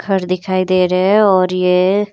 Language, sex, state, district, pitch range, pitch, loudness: Hindi, female, Himachal Pradesh, Shimla, 185-195 Hz, 185 Hz, -14 LUFS